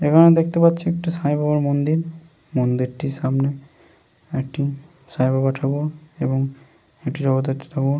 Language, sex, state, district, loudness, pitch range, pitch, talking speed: Bengali, male, West Bengal, Paschim Medinipur, -21 LUFS, 135-160 Hz, 140 Hz, 135 wpm